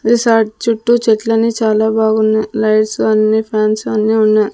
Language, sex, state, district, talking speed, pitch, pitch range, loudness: Telugu, female, Andhra Pradesh, Sri Satya Sai, 130 wpm, 220 Hz, 215-225 Hz, -13 LUFS